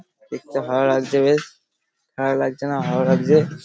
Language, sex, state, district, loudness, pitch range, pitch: Bengali, male, West Bengal, Paschim Medinipur, -20 LUFS, 135-150 Hz, 140 Hz